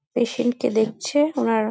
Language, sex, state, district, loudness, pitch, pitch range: Bengali, female, West Bengal, North 24 Parganas, -22 LUFS, 240 Hz, 220-255 Hz